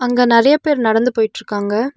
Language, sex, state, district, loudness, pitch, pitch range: Tamil, female, Tamil Nadu, Nilgiris, -15 LUFS, 235 Hz, 220-250 Hz